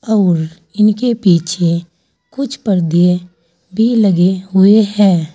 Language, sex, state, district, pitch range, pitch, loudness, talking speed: Hindi, female, Uttar Pradesh, Saharanpur, 170-210 Hz, 185 Hz, -13 LUFS, 100 wpm